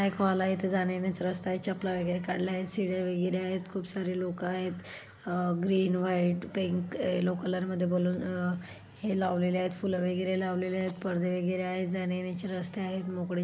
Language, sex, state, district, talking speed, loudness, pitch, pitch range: Marathi, female, Maharashtra, Solapur, 190 wpm, -31 LUFS, 185 Hz, 180-185 Hz